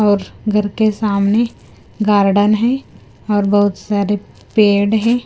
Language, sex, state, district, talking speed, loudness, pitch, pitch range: Hindi, female, Punjab, Kapurthala, 125 wpm, -15 LUFS, 205 Hz, 205-220 Hz